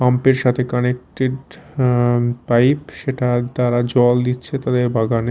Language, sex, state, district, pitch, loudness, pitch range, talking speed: Bengali, male, Chhattisgarh, Raipur, 125 Hz, -18 LUFS, 120-130 Hz, 135 wpm